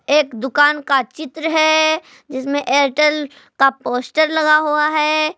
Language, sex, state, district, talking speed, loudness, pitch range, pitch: Hindi, female, Jharkhand, Palamu, 135 wpm, -16 LUFS, 275-310 Hz, 300 Hz